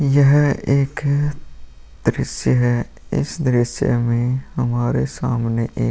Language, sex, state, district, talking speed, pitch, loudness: Hindi, male, Bihar, Vaishali, 110 wpm, 120 Hz, -19 LUFS